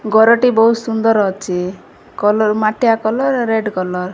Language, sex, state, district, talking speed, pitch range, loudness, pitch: Odia, female, Odisha, Malkangiri, 145 wpm, 200-225 Hz, -15 LUFS, 220 Hz